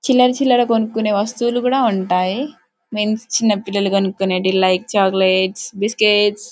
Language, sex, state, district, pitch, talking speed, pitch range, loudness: Telugu, female, Telangana, Karimnagar, 210 Hz, 110 wpm, 190-235 Hz, -17 LUFS